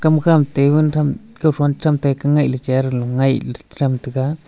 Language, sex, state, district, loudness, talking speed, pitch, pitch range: Wancho, male, Arunachal Pradesh, Longding, -17 LUFS, 230 wpm, 145 Hz, 135-150 Hz